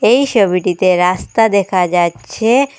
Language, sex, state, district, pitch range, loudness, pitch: Bengali, female, Assam, Hailakandi, 180-225 Hz, -13 LUFS, 185 Hz